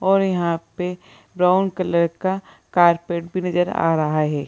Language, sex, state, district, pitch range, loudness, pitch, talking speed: Hindi, female, Bihar, Gaya, 170-185 Hz, -20 LUFS, 180 Hz, 160 wpm